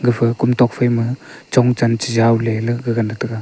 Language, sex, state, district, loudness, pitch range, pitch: Wancho, male, Arunachal Pradesh, Longding, -17 LUFS, 115-125 Hz, 120 Hz